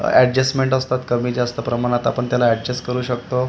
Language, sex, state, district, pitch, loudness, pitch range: Marathi, male, Maharashtra, Gondia, 125 Hz, -19 LUFS, 120-130 Hz